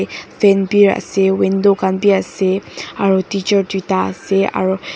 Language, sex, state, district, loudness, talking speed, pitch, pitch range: Nagamese, female, Nagaland, Dimapur, -15 LUFS, 145 wpm, 195 Hz, 190-200 Hz